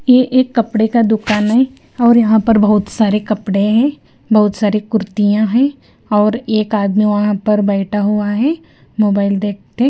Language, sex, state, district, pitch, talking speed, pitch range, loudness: Hindi, female, Punjab, Kapurthala, 215 Hz, 165 wpm, 205-230 Hz, -14 LUFS